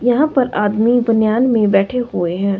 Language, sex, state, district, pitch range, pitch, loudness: Hindi, female, Himachal Pradesh, Shimla, 205-245 Hz, 225 Hz, -15 LUFS